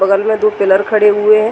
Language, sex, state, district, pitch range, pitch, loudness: Hindi, female, Bihar, Gaya, 200-215 Hz, 210 Hz, -12 LUFS